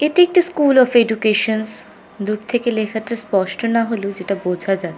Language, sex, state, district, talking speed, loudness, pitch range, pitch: Bengali, female, West Bengal, North 24 Parganas, 170 wpm, -18 LUFS, 200-240 Hz, 220 Hz